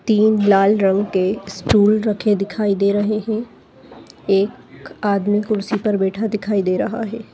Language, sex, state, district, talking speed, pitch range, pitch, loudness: Hindi, female, Chhattisgarh, Bastar, 155 wpm, 195-215 Hz, 205 Hz, -18 LUFS